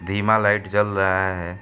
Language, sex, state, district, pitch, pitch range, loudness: Hindi, male, Uttar Pradesh, Hamirpur, 100 Hz, 95-105 Hz, -20 LUFS